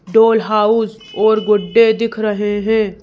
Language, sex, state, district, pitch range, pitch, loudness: Hindi, female, Madhya Pradesh, Bhopal, 210-225 Hz, 215 Hz, -14 LUFS